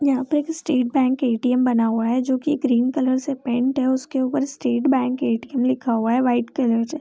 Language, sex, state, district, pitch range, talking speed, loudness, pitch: Hindi, female, Bihar, Gopalganj, 245-270 Hz, 230 wpm, -21 LUFS, 255 Hz